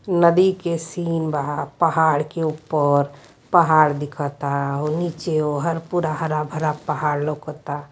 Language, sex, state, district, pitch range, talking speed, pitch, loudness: Hindi, male, Uttar Pradesh, Varanasi, 145-165 Hz, 135 wpm, 155 Hz, -21 LUFS